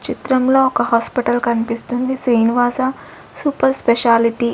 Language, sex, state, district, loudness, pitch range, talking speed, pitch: Telugu, female, Andhra Pradesh, Sri Satya Sai, -16 LUFS, 235-260 Hz, 105 wpm, 245 Hz